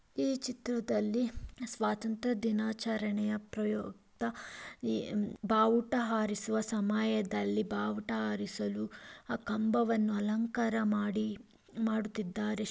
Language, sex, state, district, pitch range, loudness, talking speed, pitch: Kannada, female, Karnataka, Mysore, 210-225 Hz, -34 LUFS, 55 wpm, 215 Hz